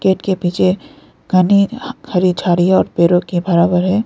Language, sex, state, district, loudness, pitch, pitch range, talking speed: Hindi, female, Arunachal Pradesh, Lower Dibang Valley, -15 LUFS, 185 Hz, 175-195 Hz, 145 wpm